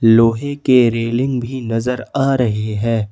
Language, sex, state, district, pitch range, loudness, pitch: Hindi, male, Jharkhand, Ranchi, 115-130 Hz, -17 LUFS, 120 Hz